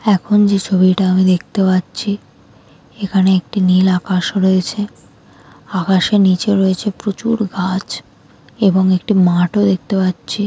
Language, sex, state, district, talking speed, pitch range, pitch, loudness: Bengali, female, West Bengal, Jalpaiguri, 120 wpm, 185-205 Hz, 190 Hz, -15 LUFS